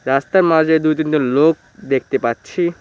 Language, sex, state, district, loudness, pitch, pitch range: Bengali, male, West Bengal, Cooch Behar, -16 LUFS, 155 Hz, 135-160 Hz